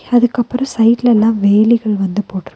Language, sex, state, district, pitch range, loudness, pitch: Tamil, female, Tamil Nadu, Nilgiris, 205-240 Hz, -13 LUFS, 225 Hz